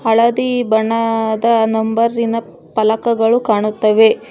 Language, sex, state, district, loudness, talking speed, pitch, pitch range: Kannada, female, Karnataka, Bangalore, -15 LUFS, 70 wpm, 225 Hz, 220-235 Hz